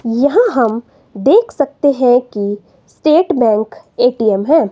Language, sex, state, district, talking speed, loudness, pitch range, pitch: Hindi, female, Himachal Pradesh, Shimla, 125 wpm, -13 LUFS, 220-290 Hz, 245 Hz